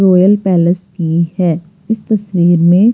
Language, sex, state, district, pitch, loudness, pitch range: Hindi, female, Delhi, New Delhi, 180 Hz, -13 LUFS, 175-195 Hz